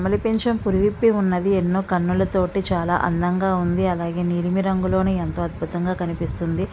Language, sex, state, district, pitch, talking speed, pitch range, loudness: Telugu, female, Andhra Pradesh, Visakhapatnam, 185 Hz, 160 wpm, 175-190 Hz, -21 LUFS